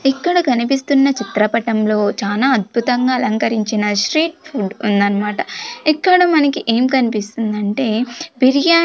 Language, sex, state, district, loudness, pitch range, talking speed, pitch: Telugu, female, Andhra Pradesh, Sri Satya Sai, -16 LUFS, 215-285 Hz, 100 wpm, 245 Hz